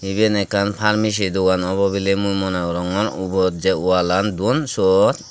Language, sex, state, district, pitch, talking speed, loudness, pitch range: Chakma, male, Tripura, Dhalai, 100 Hz, 160 wpm, -19 LUFS, 95-105 Hz